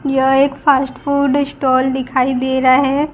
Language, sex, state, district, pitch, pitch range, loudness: Hindi, female, Gujarat, Gandhinagar, 270 Hz, 260-280 Hz, -15 LUFS